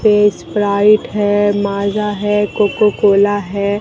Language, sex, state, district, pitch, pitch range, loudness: Hindi, female, Bihar, Katihar, 205 Hz, 200-210 Hz, -14 LUFS